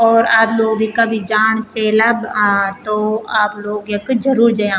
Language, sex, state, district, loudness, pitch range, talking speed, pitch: Garhwali, female, Uttarakhand, Tehri Garhwal, -15 LUFS, 210-230 Hz, 175 wpm, 220 Hz